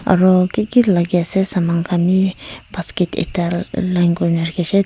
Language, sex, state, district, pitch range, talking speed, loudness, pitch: Nagamese, female, Nagaland, Kohima, 175-190 Hz, 150 wpm, -16 LUFS, 180 Hz